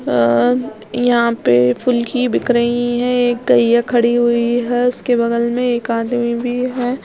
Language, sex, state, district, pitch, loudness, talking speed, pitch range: Hindi, female, Uttar Pradesh, Jalaun, 240 Hz, -16 LUFS, 170 wpm, 235-245 Hz